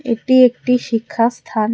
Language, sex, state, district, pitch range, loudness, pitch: Bengali, female, Tripura, West Tripura, 230-250 Hz, -16 LUFS, 240 Hz